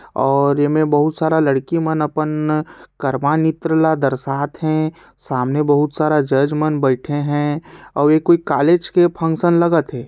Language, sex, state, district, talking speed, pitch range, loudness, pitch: Chhattisgarhi, male, Chhattisgarh, Sarguja, 155 wpm, 140-160 Hz, -17 LUFS, 150 Hz